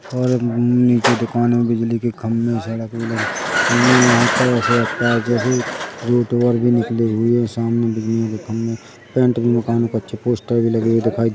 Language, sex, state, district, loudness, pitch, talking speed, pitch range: Hindi, male, Chhattisgarh, Rajnandgaon, -17 LUFS, 115 Hz, 160 wpm, 115-120 Hz